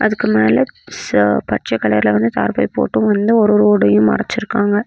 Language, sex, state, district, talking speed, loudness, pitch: Tamil, female, Tamil Nadu, Namakkal, 135 wpm, -15 LUFS, 205 Hz